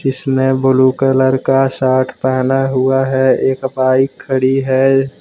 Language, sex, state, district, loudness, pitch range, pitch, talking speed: Hindi, male, Jharkhand, Deoghar, -14 LUFS, 130-135 Hz, 130 Hz, 140 wpm